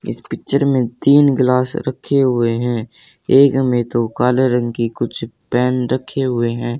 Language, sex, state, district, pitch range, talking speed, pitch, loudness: Hindi, male, Haryana, Charkhi Dadri, 120-135 Hz, 165 wpm, 125 Hz, -16 LUFS